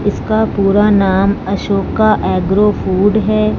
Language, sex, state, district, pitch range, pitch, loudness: Hindi, female, Punjab, Fazilka, 195-215 Hz, 200 Hz, -13 LUFS